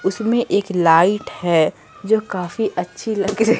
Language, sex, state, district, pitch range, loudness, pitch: Hindi, male, Bihar, Katihar, 180-220 Hz, -18 LUFS, 200 Hz